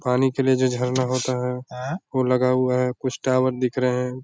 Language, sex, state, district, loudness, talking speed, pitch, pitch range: Hindi, male, Bihar, Darbhanga, -22 LUFS, 240 wpm, 130 Hz, 125-130 Hz